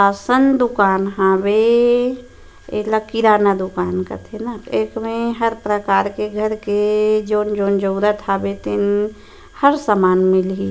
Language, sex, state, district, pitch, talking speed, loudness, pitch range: Chhattisgarhi, female, Chhattisgarh, Rajnandgaon, 210 Hz, 120 wpm, -17 LUFS, 195-225 Hz